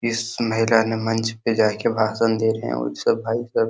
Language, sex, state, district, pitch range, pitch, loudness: Hindi, male, Uttar Pradesh, Hamirpur, 110-115 Hz, 115 Hz, -21 LUFS